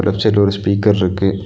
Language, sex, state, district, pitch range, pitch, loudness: Tamil, male, Tamil Nadu, Nilgiris, 95-105 Hz, 100 Hz, -15 LUFS